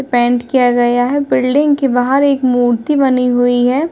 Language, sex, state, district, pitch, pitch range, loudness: Hindi, female, Uttar Pradesh, Hamirpur, 255 Hz, 245-275 Hz, -13 LUFS